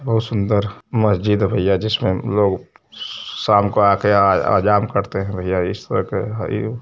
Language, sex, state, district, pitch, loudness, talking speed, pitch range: Hindi, male, Uttar Pradesh, Varanasi, 105 Hz, -18 LUFS, 160 wpm, 100-110 Hz